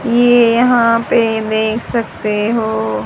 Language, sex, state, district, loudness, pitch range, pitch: Hindi, female, Haryana, Jhajjar, -14 LUFS, 220-235 Hz, 230 Hz